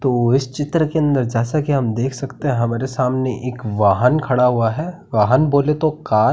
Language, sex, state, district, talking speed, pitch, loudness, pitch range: Hindi, male, Uttarakhand, Tehri Garhwal, 230 wpm, 130 Hz, -18 LUFS, 120-150 Hz